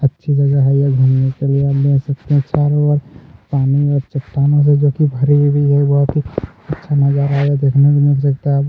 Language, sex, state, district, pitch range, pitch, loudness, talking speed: Hindi, male, Chhattisgarh, Kabirdham, 140-145 Hz, 140 Hz, -14 LUFS, 205 wpm